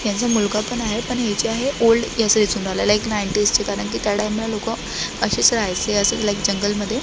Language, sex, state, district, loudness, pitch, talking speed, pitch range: Marathi, female, Maharashtra, Dhule, -19 LUFS, 215 Hz, 190 wpm, 205-230 Hz